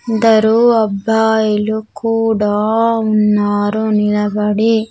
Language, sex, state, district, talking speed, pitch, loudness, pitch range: Telugu, female, Andhra Pradesh, Sri Satya Sai, 60 wpm, 220 Hz, -14 LUFS, 210-225 Hz